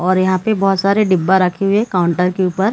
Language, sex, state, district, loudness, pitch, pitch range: Hindi, female, Bihar, Gaya, -15 LUFS, 190 Hz, 180-200 Hz